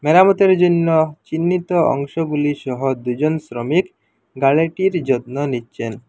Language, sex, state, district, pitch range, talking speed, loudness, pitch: Bengali, male, Assam, Hailakandi, 130-170 Hz, 90 wpm, -18 LUFS, 150 Hz